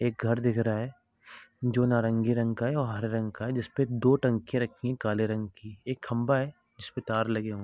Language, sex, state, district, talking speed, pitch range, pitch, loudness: Hindi, male, Bihar, Gopalganj, 250 wpm, 110-125 Hz, 120 Hz, -29 LUFS